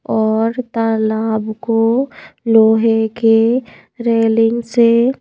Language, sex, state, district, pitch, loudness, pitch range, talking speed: Hindi, female, Madhya Pradesh, Bhopal, 225 Hz, -15 LUFS, 220-235 Hz, 80 wpm